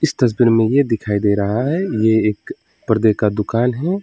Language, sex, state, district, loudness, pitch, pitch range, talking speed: Hindi, male, West Bengal, Alipurduar, -17 LUFS, 115 Hz, 105-130 Hz, 195 wpm